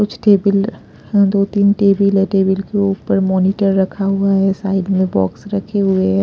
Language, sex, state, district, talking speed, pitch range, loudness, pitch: Hindi, female, Punjab, Pathankot, 175 wpm, 190-200 Hz, -15 LUFS, 195 Hz